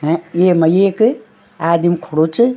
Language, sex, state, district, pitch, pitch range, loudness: Garhwali, female, Uttarakhand, Tehri Garhwal, 170 Hz, 165-195 Hz, -14 LUFS